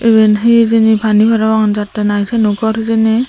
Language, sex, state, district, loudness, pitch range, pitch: Chakma, female, Tripura, Dhalai, -12 LUFS, 210-225 Hz, 220 Hz